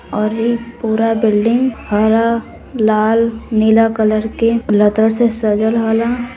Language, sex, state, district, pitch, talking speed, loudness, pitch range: Hindi, female, Uttar Pradesh, Varanasi, 225 Hz, 120 wpm, -14 LUFS, 215-230 Hz